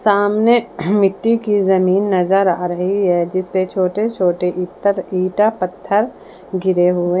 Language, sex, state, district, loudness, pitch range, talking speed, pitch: Hindi, female, Jharkhand, Palamu, -17 LUFS, 180-205 Hz, 140 wpm, 190 Hz